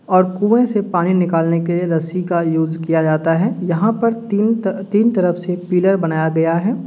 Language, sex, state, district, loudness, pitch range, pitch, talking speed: Hindi, male, Uttar Pradesh, Hamirpur, -17 LUFS, 165-205 Hz, 180 Hz, 185 wpm